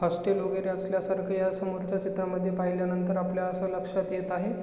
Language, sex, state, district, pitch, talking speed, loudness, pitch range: Marathi, male, Maharashtra, Chandrapur, 185 Hz, 180 wpm, -30 LUFS, 185-190 Hz